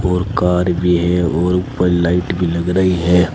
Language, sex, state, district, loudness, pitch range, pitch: Hindi, male, Uttar Pradesh, Saharanpur, -16 LUFS, 85-90 Hz, 90 Hz